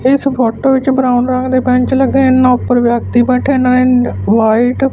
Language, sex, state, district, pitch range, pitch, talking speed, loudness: Punjabi, male, Punjab, Fazilka, 245-265 Hz, 255 Hz, 170 wpm, -11 LUFS